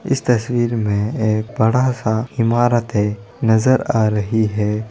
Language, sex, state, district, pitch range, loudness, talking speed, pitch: Hindi, female, Bihar, Darbhanga, 110-120 Hz, -18 LUFS, 120 wpm, 110 Hz